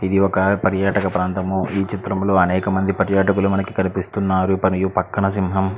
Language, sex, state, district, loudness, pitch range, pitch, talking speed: Telugu, male, Andhra Pradesh, Krishna, -19 LUFS, 95-100 Hz, 95 Hz, 195 wpm